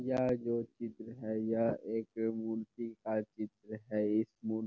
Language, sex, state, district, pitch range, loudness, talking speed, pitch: Hindi, male, Bihar, Gopalganj, 110-115 Hz, -37 LUFS, 165 wpm, 110 Hz